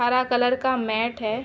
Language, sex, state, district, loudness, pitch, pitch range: Hindi, female, Uttar Pradesh, Ghazipur, -23 LUFS, 245 Hz, 230-255 Hz